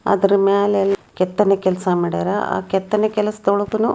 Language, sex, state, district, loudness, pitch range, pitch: Kannada, female, Karnataka, Dharwad, -18 LUFS, 190-210 Hz, 200 Hz